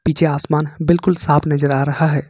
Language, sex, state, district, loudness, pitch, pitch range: Hindi, male, Jharkhand, Ranchi, -16 LUFS, 150 Hz, 145-165 Hz